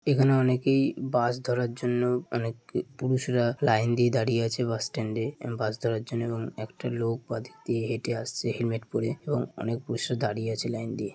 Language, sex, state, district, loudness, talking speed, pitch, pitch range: Bengali, male, West Bengal, Dakshin Dinajpur, -28 LUFS, 180 wpm, 120 Hz, 115-125 Hz